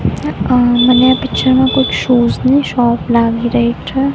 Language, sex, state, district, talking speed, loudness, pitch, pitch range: Gujarati, female, Gujarat, Gandhinagar, 175 wpm, -12 LUFS, 245 Hz, 235-260 Hz